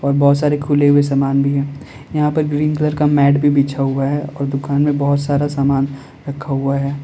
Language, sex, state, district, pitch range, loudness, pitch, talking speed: Hindi, male, Uttar Pradesh, Lalitpur, 140-145 Hz, -16 LUFS, 140 Hz, 230 wpm